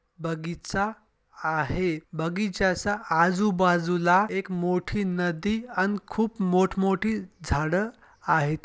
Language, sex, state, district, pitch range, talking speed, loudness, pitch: Marathi, male, Maharashtra, Sindhudurg, 175-205 Hz, 105 wpm, -26 LUFS, 185 Hz